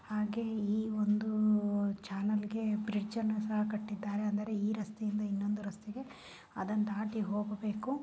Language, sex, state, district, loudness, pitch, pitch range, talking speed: Kannada, female, Karnataka, Bellary, -35 LUFS, 210 Hz, 210-215 Hz, 125 wpm